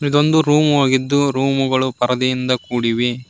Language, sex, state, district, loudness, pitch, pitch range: Kannada, male, Karnataka, Koppal, -16 LUFS, 130 Hz, 125-145 Hz